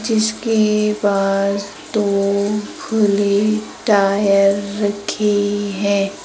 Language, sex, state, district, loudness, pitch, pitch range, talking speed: Hindi, female, Madhya Pradesh, Umaria, -17 LUFS, 205 Hz, 200-210 Hz, 65 wpm